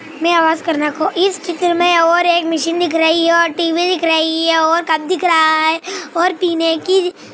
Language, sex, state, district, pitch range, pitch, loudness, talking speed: Hindi, female, Andhra Pradesh, Anantapur, 325-350 Hz, 335 Hz, -14 LUFS, 205 wpm